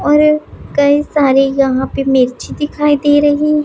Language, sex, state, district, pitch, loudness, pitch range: Hindi, female, Punjab, Pathankot, 290 Hz, -13 LUFS, 270-295 Hz